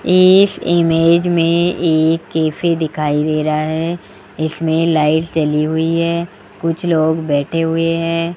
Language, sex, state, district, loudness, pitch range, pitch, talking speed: Hindi, male, Rajasthan, Jaipur, -15 LUFS, 155-170 Hz, 165 Hz, 135 wpm